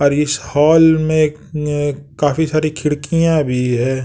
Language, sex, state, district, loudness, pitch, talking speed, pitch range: Hindi, male, Bihar, West Champaran, -15 LUFS, 150 Hz, 135 wpm, 140-155 Hz